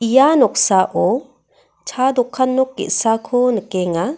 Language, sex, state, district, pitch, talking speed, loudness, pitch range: Garo, female, Meghalaya, West Garo Hills, 250 Hz, 100 wpm, -16 LUFS, 225-265 Hz